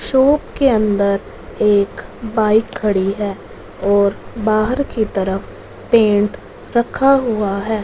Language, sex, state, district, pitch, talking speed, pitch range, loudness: Hindi, female, Punjab, Fazilka, 215 Hz, 115 wpm, 200-230 Hz, -16 LUFS